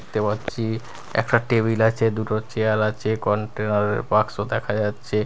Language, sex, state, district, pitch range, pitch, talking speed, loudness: Bengali, male, Bihar, Katihar, 105-115 Hz, 110 Hz, 150 wpm, -23 LUFS